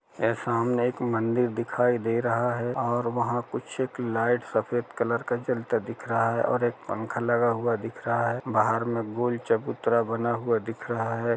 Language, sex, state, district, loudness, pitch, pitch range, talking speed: Hindi, male, Chhattisgarh, Kabirdham, -27 LUFS, 120 Hz, 115-120 Hz, 195 wpm